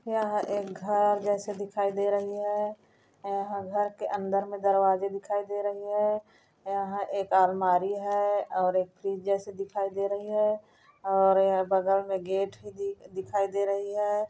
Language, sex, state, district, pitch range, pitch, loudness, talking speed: Chhattisgarhi, female, Chhattisgarh, Korba, 195-205 Hz, 200 Hz, -28 LUFS, 170 wpm